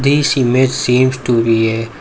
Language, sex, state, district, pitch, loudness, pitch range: English, male, Karnataka, Bangalore, 125 Hz, -14 LUFS, 115-130 Hz